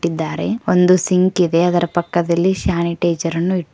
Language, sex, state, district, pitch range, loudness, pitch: Kannada, female, Karnataka, Koppal, 170-180 Hz, -17 LUFS, 175 Hz